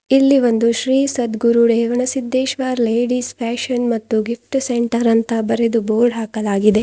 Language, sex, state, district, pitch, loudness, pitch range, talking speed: Kannada, female, Karnataka, Bidar, 235 Hz, -17 LUFS, 230-255 Hz, 130 wpm